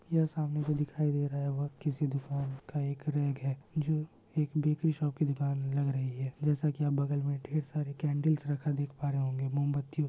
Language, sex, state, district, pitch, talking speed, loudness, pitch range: Hindi, male, Bihar, Muzaffarpur, 145 Hz, 210 wpm, -33 LUFS, 140-150 Hz